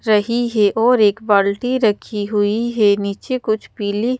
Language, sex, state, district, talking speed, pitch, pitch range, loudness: Hindi, female, Madhya Pradesh, Bhopal, 155 wpm, 215 Hz, 205-235 Hz, -17 LUFS